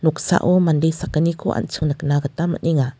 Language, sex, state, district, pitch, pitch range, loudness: Garo, female, Meghalaya, West Garo Hills, 160 Hz, 150-170 Hz, -20 LUFS